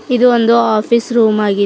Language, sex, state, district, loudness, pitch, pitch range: Kannada, female, Karnataka, Bidar, -12 LUFS, 235 Hz, 215-240 Hz